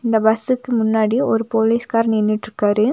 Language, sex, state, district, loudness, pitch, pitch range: Tamil, female, Tamil Nadu, Nilgiris, -18 LUFS, 225 Hz, 220-235 Hz